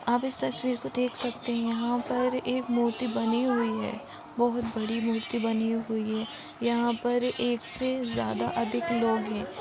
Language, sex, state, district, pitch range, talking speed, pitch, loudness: Hindi, female, Chhattisgarh, Korba, 225-245 Hz, 175 wpm, 235 Hz, -29 LUFS